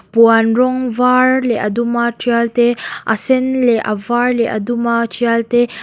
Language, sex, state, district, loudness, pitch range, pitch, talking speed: Mizo, female, Mizoram, Aizawl, -14 LUFS, 230-245 Hz, 235 Hz, 205 wpm